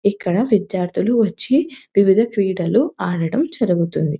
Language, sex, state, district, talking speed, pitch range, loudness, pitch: Telugu, female, Telangana, Nalgonda, 100 wpm, 180-235 Hz, -18 LUFS, 200 Hz